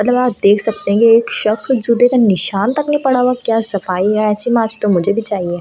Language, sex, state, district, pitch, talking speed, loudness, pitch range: Hindi, female, Delhi, New Delhi, 225 Hz, 235 wpm, -14 LUFS, 200-245 Hz